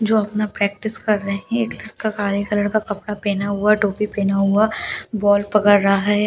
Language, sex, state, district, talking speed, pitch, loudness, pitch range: Hindi, female, Delhi, New Delhi, 240 wpm, 205 Hz, -19 LUFS, 200-215 Hz